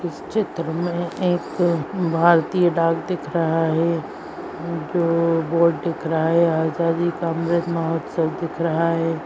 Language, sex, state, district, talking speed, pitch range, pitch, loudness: Hindi, female, West Bengal, Dakshin Dinajpur, 145 wpm, 165-175 Hz, 170 Hz, -21 LUFS